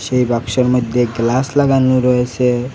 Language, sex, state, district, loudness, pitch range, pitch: Bengali, male, Assam, Hailakandi, -15 LUFS, 120-130 Hz, 125 Hz